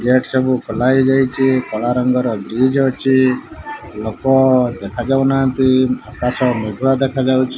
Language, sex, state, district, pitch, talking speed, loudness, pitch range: Odia, male, Odisha, Malkangiri, 130 Hz, 105 wpm, -16 LUFS, 125-135 Hz